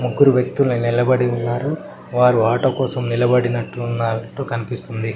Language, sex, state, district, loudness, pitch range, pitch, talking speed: Telugu, male, Telangana, Mahabubabad, -19 LUFS, 120-125 Hz, 120 Hz, 130 wpm